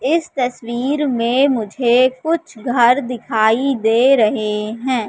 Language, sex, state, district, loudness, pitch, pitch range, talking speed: Hindi, female, Madhya Pradesh, Katni, -16 LUFS, 250 Hz, 225-270 Hz, 120 wpm